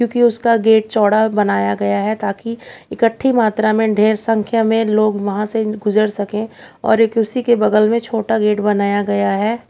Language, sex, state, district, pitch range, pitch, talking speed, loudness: Hindi, female, Bihar, Katihar, 210-225 Hz, 215 Hz, 185 wpm, -16 LUFS